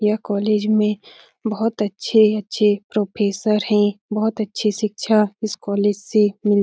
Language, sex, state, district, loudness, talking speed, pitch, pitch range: Hindi, female, Bihar, Lakhisarai, -20 LUFS, 155 wpm, 210 Hz, 205-215 Hz